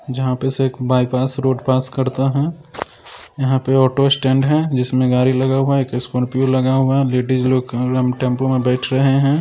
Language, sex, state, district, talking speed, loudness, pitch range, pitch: Maithili, male, Bihar, Samastipur, 190 wpm, -17 LUFS, 130-135 Hz, 130 Hz